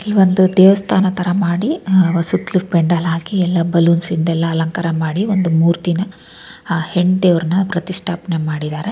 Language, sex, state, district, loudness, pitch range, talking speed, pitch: Kannada, female, Karnataka, Raichur, -15 LUFS, 170-190 Hz, 140 wpm, 175 Hz